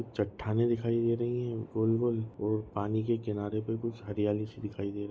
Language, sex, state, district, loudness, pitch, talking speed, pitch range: Hindi, male, Goa, North and South Goa, -32 LUFS, 110 Hz, 200 wpm, 105-115 Hz